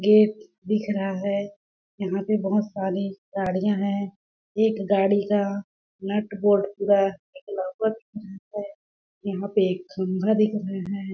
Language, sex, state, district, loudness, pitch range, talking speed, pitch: Hindi, female, Chhattisgarh, Balrampur, -25 LUFS, 195-210 Hz, 135 wpm, 200 Hz